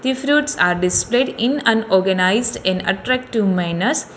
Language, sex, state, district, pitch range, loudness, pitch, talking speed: English, female, Telangana, Hyderabad, 185-255 Hz, -17 LUFS, 225 Hz, 145 wpm